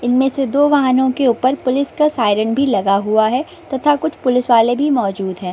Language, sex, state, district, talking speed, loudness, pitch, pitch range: Hindi, female, Bihar, Samastipur, 215 wpm, -16 LUFS, 255 Hz, 225-280 Hz